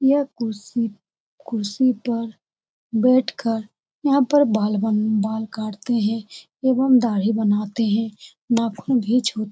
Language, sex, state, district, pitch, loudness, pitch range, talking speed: Hindi, female, Bihar, Saran, 225 Hz, -21 LUFS, 215-250 Hz, 125 wpm